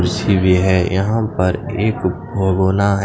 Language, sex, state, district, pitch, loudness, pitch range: Hindi, male, Odisha, Khordha, 95 Hz, -17 LUFS, 90-105 Hz